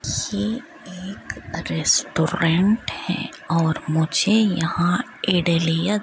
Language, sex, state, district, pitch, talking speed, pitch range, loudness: Hindi, female, Uttar Pradesh, Hamirpur, 175 Hz, 90 wpm, 165-205 Hz, -21 LUFS